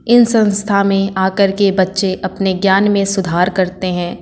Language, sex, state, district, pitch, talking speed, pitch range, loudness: Hindi, female, Uttar Pradesh, Varanasi, 195 Hz, 170 wpm, 185-200 Hz, -14 LUFS